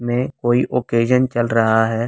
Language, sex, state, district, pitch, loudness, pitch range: Hindi, male, Delhi, New Delhi, 120 Hz, -18 LUFS, 115-125 Hz